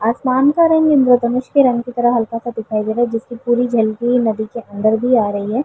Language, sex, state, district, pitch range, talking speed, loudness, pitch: Hindi, female, Bihar, Vaishali, 225-250 Hz, 255 wpm, -16 LUFS, 240 Hz